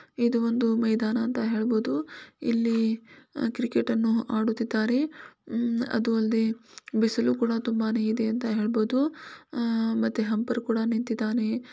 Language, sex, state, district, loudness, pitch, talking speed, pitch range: Kannada, female, Karnataka, Dharwad, -27 LUFS, 230 Hz, 105 wpm, 225-240 Hz